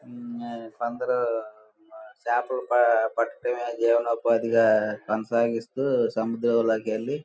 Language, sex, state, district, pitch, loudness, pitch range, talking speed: Telugu, male, Andhra Pradesh, Guntur, 115 Hz, -25 LUFS, 110-120 Hz, 65 wpm